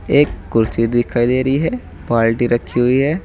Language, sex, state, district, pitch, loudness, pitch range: Hindi, male, Uttar Pradesh, Saharanpur, 120 Hz, -16 LUFS, 115-135 Hz